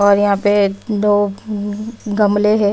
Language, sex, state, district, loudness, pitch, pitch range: Hindi, female, Haryana, Rohtak, -16 LUFS, 205 Hz, 205-210 Hz